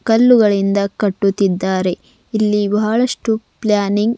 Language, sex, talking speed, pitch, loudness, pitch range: Kannada, female, 70 wpm, 210 Hz, -16 LUFS, 200-220 Hz